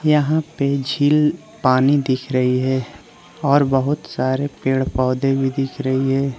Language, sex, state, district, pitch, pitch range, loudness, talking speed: Hindi, male, Arunachal Pradesh, Lower Dibang Valley, 135 Hz, 130-145 Hz, -19 LUFS, 150 wpm